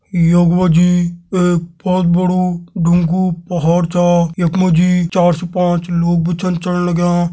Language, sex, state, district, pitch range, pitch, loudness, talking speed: Garhwali, male, Uttarakhand, Tehri Garhwal, 170-180 Hz, 175 Hz, -14 LUFS, 165 wpm